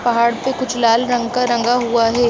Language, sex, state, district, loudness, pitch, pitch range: Hindi, female, Uttar Pradesh, Jalaun, -16 LUFS, 240 Hz, 235-245 Hz